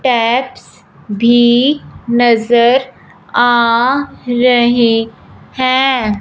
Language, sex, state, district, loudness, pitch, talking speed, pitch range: Hindi, female, Punjab, Fazilka, -12 LUFS, 240 Hz, 60 wpm, 230-255 Hz